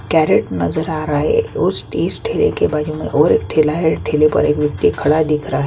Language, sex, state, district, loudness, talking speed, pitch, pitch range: Hindi, male, Chhattisgarh, Kabirdham, -16 LUFS, 255 wpm, 150 Hz, 150-160 Hz